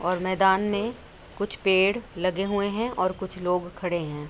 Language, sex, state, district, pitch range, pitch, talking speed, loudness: Hindi, female, Uttar Pradesh, Budaun, 180-200 Hz, 190 Hz, 180 wpm, -26 LUFS